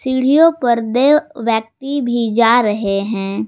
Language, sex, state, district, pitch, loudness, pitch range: Hindi, female, Jharkhand, Ranchi, 235 Hz, -15 LUFS, 220-270 Hz